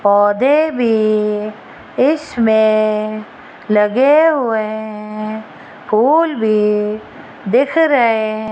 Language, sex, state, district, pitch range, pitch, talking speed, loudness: Hindi, female, Rajasthan, Jaipur, 215-265 Hz, 220 Hz, 75 wpm, -15 LUFS